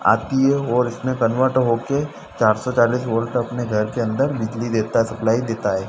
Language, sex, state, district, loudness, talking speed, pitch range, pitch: Hindi, male, Madhya Pradesh, Dhar, -20 LUFS, 205 wpm, 115-130 Hz, 120 Hz